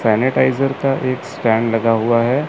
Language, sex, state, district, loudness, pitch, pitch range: Hindi, male, Chandigarh, Chandigarh, -17 LUFS, 125 Hz, 115-135 Hz